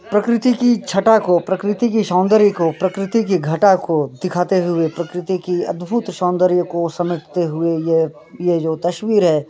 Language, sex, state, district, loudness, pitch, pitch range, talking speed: Hindi, male, Bihar, Muzaffarpur, -17 LUFS, 180 Hz, 170-205 Hz, 165 wpm